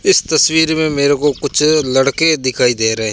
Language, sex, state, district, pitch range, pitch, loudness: Hindi, male, Rajasthan, Barmer, 130-160 Hz, 145 Hz, -13 LUFS